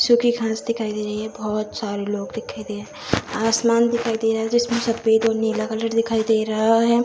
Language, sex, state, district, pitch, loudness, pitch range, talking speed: Hindi, female, Bihar, Saharsa, 225 Hz, -21 LUFS, 215-230 Hz, 220 wpm